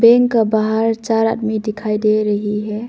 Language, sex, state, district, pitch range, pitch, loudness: Hindi, female, Arunachal Pradesh, Longding, 215-225 Hz, 220 Hz, -17 LUFS